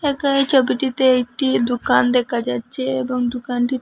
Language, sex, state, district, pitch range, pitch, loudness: Bengali, female, Assam, Hailakandi, 245-265 Hz, 255 Hz, -19 LUFS